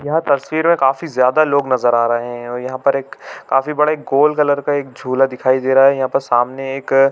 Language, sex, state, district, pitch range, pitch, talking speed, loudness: Hindi, male, Chhattisgarh, Bilaspur, 130-145 Hz, 135 Hz, 255 wpm, -16 LUFS